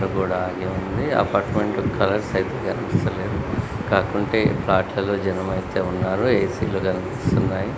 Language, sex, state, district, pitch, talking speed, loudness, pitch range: Telugu, male, Andhra Pradesh, Guntur, 95 Hz, 130 wpm, -22 LUFS, 95-105 Hz